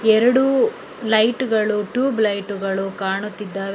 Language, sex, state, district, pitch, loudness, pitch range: Kannada, female, Karnataka, Bangalore, 215 Hz, -20 LUFS, 200-245 Hz